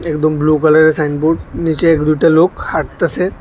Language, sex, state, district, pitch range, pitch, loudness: Bengali, male, Tripura, West Tripura, 155-165 Hz, 160 Hz, -13 LUFS